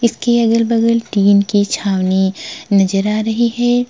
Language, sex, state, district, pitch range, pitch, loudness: Hindi, female, Uttarakhand, Tehri Garhwal, 200-230 Hz, 220 Hz, -14 LUFS